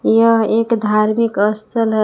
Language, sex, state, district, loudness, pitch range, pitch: Hindi, female, Jharkhand, Palamu, -15 LUFS, 215-230 Hz, 220 Hz